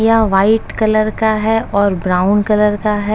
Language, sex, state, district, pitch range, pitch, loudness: Hindi, female, Uttar Pradesh, Etah, 200-220 Hz, 210 Hz, -14 LUFS